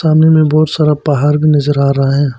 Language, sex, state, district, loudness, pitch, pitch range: Hindi, male, Arunachal Pradesh, Papum Pare, -11 LUFS, 150 Hz, 140-155 Hz